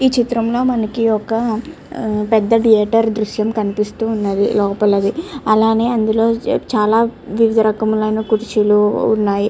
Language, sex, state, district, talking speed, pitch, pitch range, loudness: Telugu, female, Andhra Pradesh, Chittoor, 115 wpm, 220 Hz, 210-230 Hz, -16 LUFS